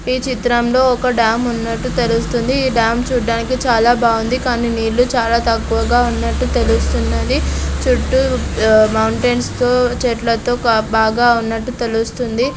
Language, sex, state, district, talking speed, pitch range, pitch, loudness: Telugu, female, Andhra Pradesh, Chittoor, 120 wpm, 225-245 Hz, 235 Hz, -15 LUFS